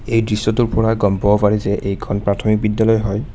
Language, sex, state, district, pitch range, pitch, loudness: Assamese, male, Assam, Kamrup Metropolitan, 100-110 Hz, 105 Hz, -17 LUFS